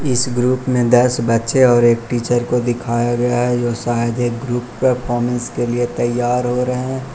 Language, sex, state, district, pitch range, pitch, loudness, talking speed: Hindi, male, Arunachal Pradesh, Lower Dibang Valley, 120-125 Hz, 120 Hz, -17 LUFS, 195 wpm